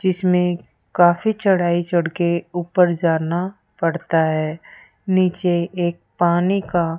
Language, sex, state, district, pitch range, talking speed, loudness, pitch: Hindi, female, Rajasthan, Jaipur, 170-185 Hz, 120 wpm, -19 LUFS, 175 Hz